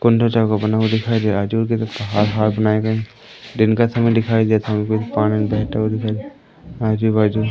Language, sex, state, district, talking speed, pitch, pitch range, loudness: Hindi, male, Madhya Pradesh, Umaria, 200 wpm, 110 Hz, 105-115 Hz, -18 LUFS